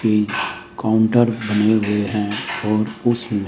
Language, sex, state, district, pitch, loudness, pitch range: Hindi, male, Rajasthan, Jaipur, 105 Hz, -19 LUFS, 105-110 Hz